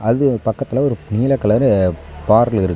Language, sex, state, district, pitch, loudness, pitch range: Tamil, male, Tamil Nadu, Nilgiris, 110 Hz, -16 LUFS, 95-135 Hz